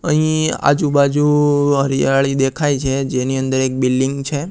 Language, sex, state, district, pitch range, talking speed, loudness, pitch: Gujarati, male, Gujarat, Gandhinagar, 135-145 Hz, 145 wpm, -16 LUFS, 140 Hz